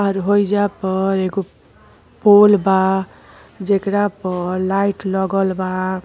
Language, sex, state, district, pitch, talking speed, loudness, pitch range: Bhojpuri, female, Uttar Pradesh, Ghazipur, 195 Hz, 110 wpm, -17 LUFS, 190-200 Hz